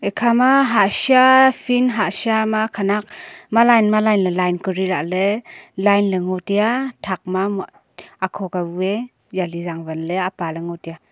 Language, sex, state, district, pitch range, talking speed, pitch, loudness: Wancho, female, Arunachal Pradesh, Longding, 185-225 Hz, 175 wpm, 200 Hz, -18 LUFS